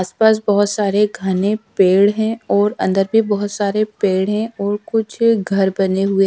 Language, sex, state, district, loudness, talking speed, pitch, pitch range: Hindi, female, Haryana, Charkhi Dadri, -17 LUFS, 180 wpm, 205 Hz, 195-215 Hz